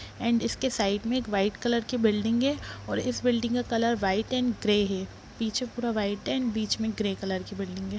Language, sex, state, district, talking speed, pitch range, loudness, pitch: Hindi, female, Bihar, Darbhanga, 225 wpm, 205-240 Hz, -28 LUFS, 225 Hz